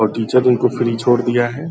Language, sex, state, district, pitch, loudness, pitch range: Hindi, male, Bihar, Purnia, 120 Hz, -16 LUFS, 115-125 Hz